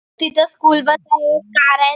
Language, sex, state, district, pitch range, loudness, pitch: Marathi, female, Maharashtra, Nagpur, 295-315 Hz, -14 LUFS, 300 Hz